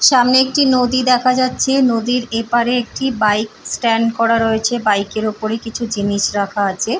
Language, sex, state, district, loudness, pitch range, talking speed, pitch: Bengali, female, West Bengal, Purulia, -16 LUFS, 215-250 Hz, 165 wpm, 230 Hz